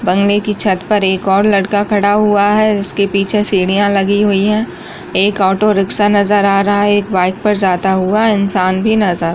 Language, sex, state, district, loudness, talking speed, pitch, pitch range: Hindi, female, Bihar, Kishanganj, -13 LUFS, 200 wpm, 200 Hz, 190-210 Hz